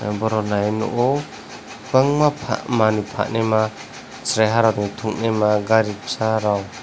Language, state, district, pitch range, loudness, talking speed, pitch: Kokborok, Tripura, West Tripura, 105-115 Hz, -20 LUFS, 95 wpm, 110 Hz